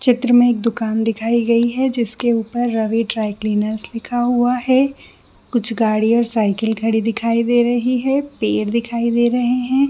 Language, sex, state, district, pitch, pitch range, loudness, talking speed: Hindi, female, Chhattisgarh, Bilaspur, 235 Hz, 225-245 Hz, -17 LUFS, 170 wpm